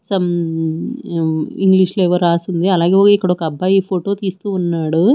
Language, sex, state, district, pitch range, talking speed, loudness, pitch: Telugu, female, Andhra Pradesh, Manyam, 170-195 Hz, 140 wpm, -16 LUFS, 180 Hz